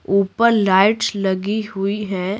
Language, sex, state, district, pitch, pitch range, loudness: Hindi, female, Bihar, Patna, 200 Hz, 190-210 Hz, -18 LUFS